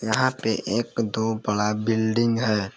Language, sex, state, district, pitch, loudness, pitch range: Hindi, male, Jharkhand, Palamu, 110 Hz, -24 LUFS, 105-115 Hz